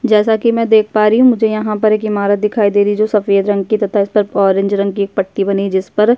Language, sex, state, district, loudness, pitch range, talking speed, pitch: Hindi, female, Uttarakhand, Tehri Garhwal, -13 LUFS, 200-215 Hz, 310 wpm, 210 Hz